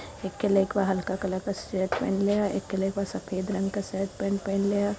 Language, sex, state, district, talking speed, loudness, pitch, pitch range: Bhojpuri, female, Uttar Pradesh, Varanasi, 230 wpm, -28 LUFS, 195 Hz, 190-200 Hz